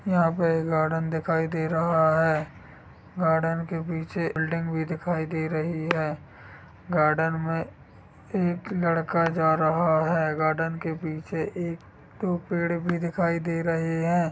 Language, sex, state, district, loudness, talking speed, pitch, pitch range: Hindi, male, Bihar, Sitamarhi, -26 LUFS, 145 wpm, 165 Hz, 160-170 Hz